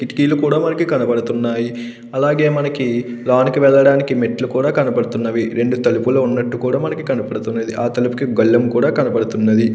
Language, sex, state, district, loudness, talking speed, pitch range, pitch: Telugu, male, Andhra Pradesh, Krishna, -16 LUFS, 135 wpm, 120-135 Hz, 120 Hz